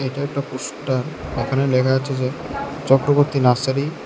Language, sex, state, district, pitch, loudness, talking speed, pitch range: Bengali, male, Tripura, West Tripura, 135 Hz, -20 LUFS, 135 wpm, 130-140 Hz